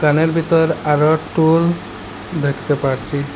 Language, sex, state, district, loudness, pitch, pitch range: Bengali, male, Assam, Hailakandi, -17 LUFS, 150 Hz, 140-160 Hz